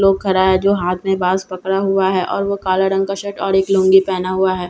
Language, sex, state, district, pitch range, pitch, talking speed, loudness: Hindi, female, Bihar, Katihar, 185-195 Hz, 190 Hz, 280 wpm, -16 LUFS